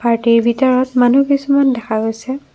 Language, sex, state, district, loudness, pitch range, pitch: Assamese, female, Assam, Kamrup Metropolitan, -14 LUFS, 235-270 Hz, 255 Hz